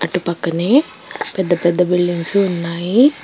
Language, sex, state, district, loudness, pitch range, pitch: Telugu, female, Telangana, Hyderabad, -16 LUFS, 170-195 Hz, 180 Hz